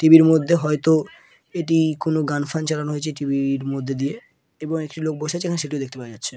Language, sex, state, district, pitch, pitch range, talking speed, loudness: Bengali, male, West Bengal, Purulia, 155 Hz, 140-160 Hz, 215 wpm, -21 LUFS